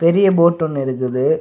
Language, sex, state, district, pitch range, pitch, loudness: Tamil, male, Tamil Nadu, Kanyakumari, 135-175 Hz, 165 Hz, -16 LUFS